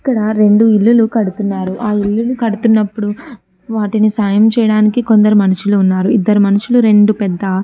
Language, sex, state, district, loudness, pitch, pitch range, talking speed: Telugu, female, Andhra Pradesh, Chittoor, -12 LUFS, 210 Hz, 205-225 Hz, 140 wpm